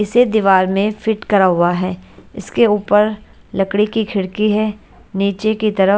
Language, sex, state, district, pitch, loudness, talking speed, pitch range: Hindi, female, Haryana, Charkhi Dadri, 205 Hz, -16 LUFS, 160 wpm, 195-215 Hz